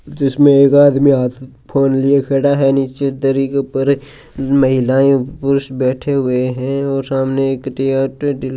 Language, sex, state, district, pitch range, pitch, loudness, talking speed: Marwari, male, Rajasthan, Churu, 130-140 Hz, 135 Hz, -14 LUFS, 135 wpm